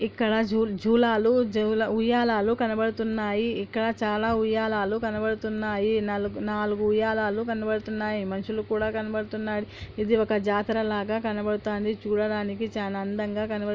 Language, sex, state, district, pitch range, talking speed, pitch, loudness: Telugu, female, Andhra Pradesh, Anantapur, 210-220 Hz, 105 wpm, 215 Hz, -26 LUFS